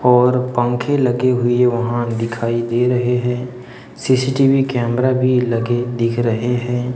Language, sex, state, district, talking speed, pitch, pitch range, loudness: Hindi, male, Maharashtra, Gondia, 140 wpm, 125 Hz, 120-125 Hz, -17 LUFS